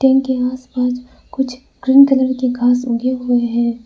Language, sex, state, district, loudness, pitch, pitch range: Hindi, female, Arunachal Pradesh, Lower Dibang Valley, -16 LUFS, 255 Hz, 245-260 Hz